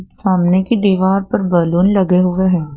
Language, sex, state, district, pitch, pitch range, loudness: Hindi, female, Madhya Pradesh, Dhar, 185 Hz, 180-195 Hz, -14 LUFS